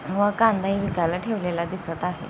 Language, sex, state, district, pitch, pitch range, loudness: Hindi, female, Maharashtra, Sindhudurg, 185 Hz, 170-200 Hz, -24 LUFS